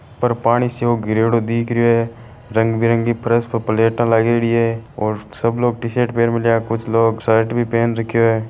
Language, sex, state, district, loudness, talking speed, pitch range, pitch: Marwari, male, Rajasthan, Churu, -17 LUFS, 200 wpm, 115-120 Hz, 115 Hz